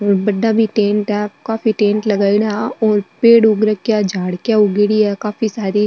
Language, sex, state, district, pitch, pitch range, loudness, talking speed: Marwari, female, Rajasthan, Nagaur, 210 Hz, 205-220 Hz, -15 LUFS, 205 wpm